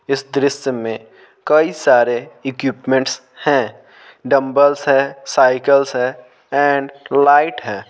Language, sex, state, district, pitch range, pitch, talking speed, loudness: Hindi, male, Bihar, Patna, 125-140 Hz, 135 Hz, 105 wpm, -16 LUFS